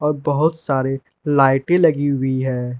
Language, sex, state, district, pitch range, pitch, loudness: Hindi, male, Arunachal Pradesh, Lower Dibang Valley, 130-150 Hz, 140 Hz, -18 LUFS